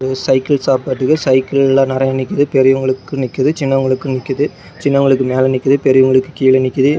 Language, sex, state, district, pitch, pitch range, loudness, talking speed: Tamil, male, Tamil Nadu, Namakkal, 135 Hz, 130-140 Hz, -14 LUFS, 155 wpm